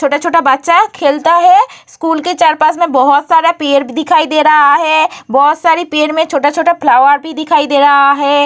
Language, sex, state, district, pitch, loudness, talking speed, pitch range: Hindi, female, Bihar, Vaishali, 310 Hz, -10 LUFS, 205 wpm, 285-330 Hz